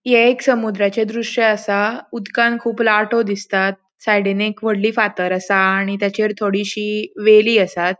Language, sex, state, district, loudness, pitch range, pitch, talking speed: Konkani, female, Goa, North and South Goa, -17 LUFS, 200-225 Hz, 210 Hz, 145 wpm